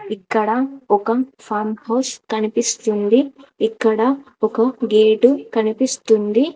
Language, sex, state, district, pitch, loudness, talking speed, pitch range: Telugu, female, Telangana, Mahabubabad, 225 Hz, -18 LUFS, 80 wpm, 215-255 Hz